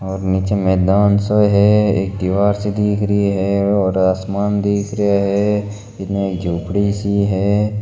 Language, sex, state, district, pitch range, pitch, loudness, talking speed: Marwari, male, Rajasthan, Nagaur, 95-105 Hz, 100 Hz, -16 LUFS, 145 wpm